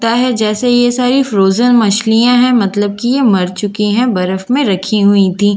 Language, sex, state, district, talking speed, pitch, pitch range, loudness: Hindi, female, Bihar, Katihar, 205 wpm, 220 Hz, 200-245 Hz, -12 LUFS